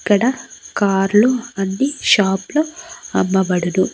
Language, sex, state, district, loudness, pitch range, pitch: Telugu, female, Andhra Pradesh, Annamaya, -17 LUFS, 195-270 Hz, 205 Hz